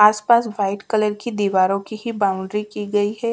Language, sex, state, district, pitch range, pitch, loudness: Hindi, female, Bihar, Kaimur, 200-215 Hz, 210 Hz, -20 LUFS